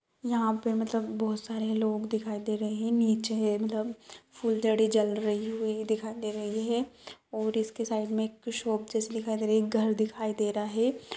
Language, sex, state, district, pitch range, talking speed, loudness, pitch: Kumaoni, female, Uttarakhand, Uttarkashi, 215-225 Hz, 195 wpm, -30 LUFS, 220 Hz